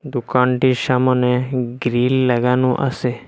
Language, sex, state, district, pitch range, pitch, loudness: Bengali, male, Assam, Hailakandi, 125-130 Hz, 125 Hz, -17 LUFS